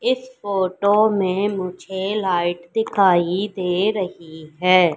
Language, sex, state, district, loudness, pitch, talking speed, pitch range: Hindi, female, Madhya Pradesh, Katni, -20 LUFS, 190 Hz, 110 wpm, 180-205 Hz